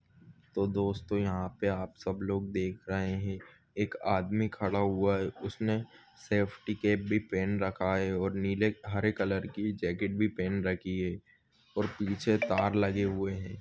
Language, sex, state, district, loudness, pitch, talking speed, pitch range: Hindi, male, Goa, North and South Goa, -32 LUFS, 100 Hz, 170 wpm, 95-105 Hz